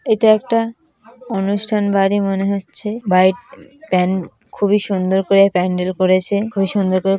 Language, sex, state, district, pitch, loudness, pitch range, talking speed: Bengali, female, West Bengal, Jhargram, 200 Hz, -17 LUFS, 190-215 Hz, 135 wpm